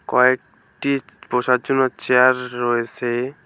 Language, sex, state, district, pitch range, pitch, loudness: Bengali, male, West Bengal, Alipurduar, 120-130 Hz, 125 Hz, -19 LUFS